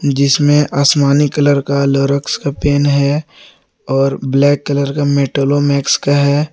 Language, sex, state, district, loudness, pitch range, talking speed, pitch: Hindi, male, Jharkhand, Garhwa, -13 LUFS, 140-145 Hz, 130 wpm, 140 Hz